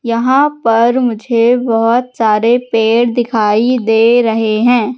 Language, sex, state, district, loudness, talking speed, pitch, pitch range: Hindi, female, Madhya Pradesh, Katni, -12 LUFS, 120 wpm, 235 Hz, 225-245 Hz